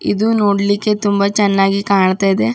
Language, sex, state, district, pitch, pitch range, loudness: Kannada, female, Karnataka, Bidar, 200 Hz, 195-205 Hz, -14 LUFS